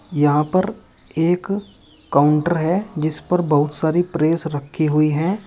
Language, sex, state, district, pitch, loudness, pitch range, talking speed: Hindi, male, Uttar Pradesh, Shamli, 160 Hz, -19 LUFS, 150-180 Hz, 140 wpm